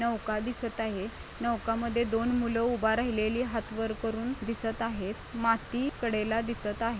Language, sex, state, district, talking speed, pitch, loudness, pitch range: Marathi, female, Maharashtra, Chandrapur, 155 wpm, 230 Hz, -31 LUFS, 220-235 Hz